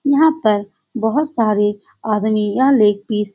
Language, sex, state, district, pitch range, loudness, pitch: Hindi, female, Bihar, Saran, 210-265 Hz, -17 LUFS, 215 Hz